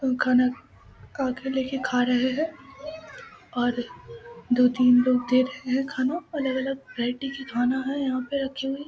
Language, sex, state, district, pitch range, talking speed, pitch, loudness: Hindi, female, Bihar, Samastipur, 250-275 Hz, 155 wpm, 265 Hz, -25 LUFS